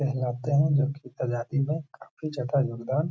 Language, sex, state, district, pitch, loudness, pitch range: Hindi, male, Bihar, Gaya, 140 Hz, -28 LUFS, 125-145 Hz